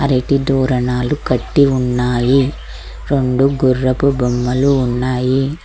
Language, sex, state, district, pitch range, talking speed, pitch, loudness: Telugu, female, Telangana, Mahabubabad, 125-140 Hz, 85 wpm, 130 Hz, -15 LUFS